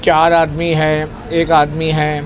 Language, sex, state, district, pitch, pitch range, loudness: Hindi, male, Maharashtra, Mumbai Suburban, 160 Hz, 150-165 Hz, -14 LUFS